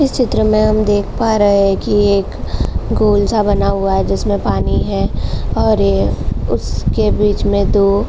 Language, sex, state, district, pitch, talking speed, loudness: Hindi, female, Uttar Pradesh, Jalaun, 195 Hz, 185 wpm, -15 LUFS